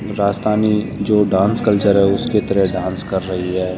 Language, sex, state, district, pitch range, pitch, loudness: Hindi, male, Rajasthan, Jaipur, 95-105 Hz, 100 Hz, -17 LUFS